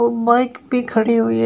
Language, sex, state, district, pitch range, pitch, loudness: Hindi, female, Uttar Pradesh, Shamli, 225-250 Hz, 235 Hz, -17 LUFS